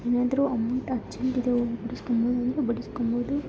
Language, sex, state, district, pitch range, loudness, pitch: Kannada, female, Karnataka, Shimoga, 240-255 Hz, -27 LUFS, 245 Hz